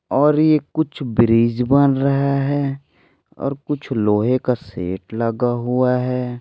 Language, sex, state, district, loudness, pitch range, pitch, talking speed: Hindi, male, Maharashtra, Aurangabad, -19 LUFS, 120-140 Hz, 125 Hz, 140 wpm